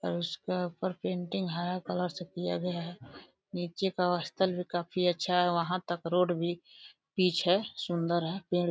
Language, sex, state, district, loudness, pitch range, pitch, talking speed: Hindi, male, Uttar Pradesh, Deoria, -32 LUFS, 170-180 Hz, 180 Hz, 170 wpm